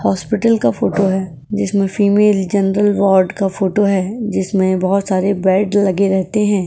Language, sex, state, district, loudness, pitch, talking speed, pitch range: Hindi, female, Goa, North and South Goa, -15 LUFS, 195 Hz, 160 wpm, 190-205 Hz